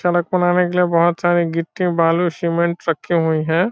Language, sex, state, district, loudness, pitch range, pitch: Hindi, male, Bihar, Saran, -18 LUFS, 170-175 Hz, 175 Hz